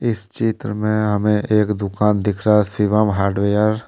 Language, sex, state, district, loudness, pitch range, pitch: Hindi, male, Jharkhand, Deoghar, -18 LUFS, 105-110 Hz, 105 Hz